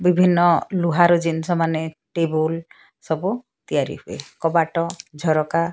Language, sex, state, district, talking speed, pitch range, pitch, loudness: Odia, female, Odisha, Sambalpur, 95 wpm, 160-175 Hz, 165 Hz, -21 LUFS